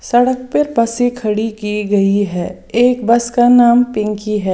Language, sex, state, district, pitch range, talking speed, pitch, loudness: Hindi, female, Odisha, Sambalpur, 210-245 Hz, 170 wpm, 230 Hz, -14 LUFS